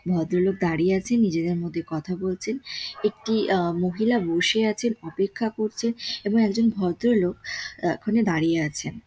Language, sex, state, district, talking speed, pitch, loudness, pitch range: Bengali, female, West Bengal, Dakshin Dinajpur, 145 wpm, 195 Hz, -24 LUFS, 175-225 Hz